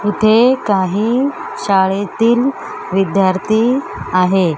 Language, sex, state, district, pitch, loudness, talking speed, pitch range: Marathi, male, Maharashtra, Mumbai Suburban, 205 Hz, -15 LUFS, 65 wpm, 190-240 Hz